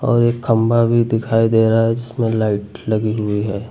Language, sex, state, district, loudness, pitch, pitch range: Hindi, male, Uttar Pradesh, Lucknow, -17 LUFS, 115 Hz, 110-115 Hz